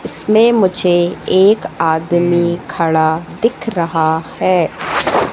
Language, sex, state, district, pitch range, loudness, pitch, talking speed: Hindi, female, Madhya Pradesh, Katni, 160-190 Hz, -14 LUFS, 175 Hz, 90 wpm